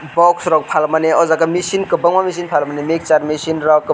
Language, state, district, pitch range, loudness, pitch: Kokborok, Tripura, West Tripura, 155-175 Hz, -15 LUFS, 160 Hz